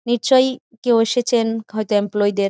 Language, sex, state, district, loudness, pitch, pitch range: Bengali, female, West Bengal, Jhargram, -18 LUFS, 225 Hz, 210-240 Hz